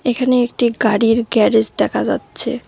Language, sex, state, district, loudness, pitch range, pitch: Bengali, female, West Bengal, Cooch Behar, -16 LUFS, 220-245 Hz, 230 Hz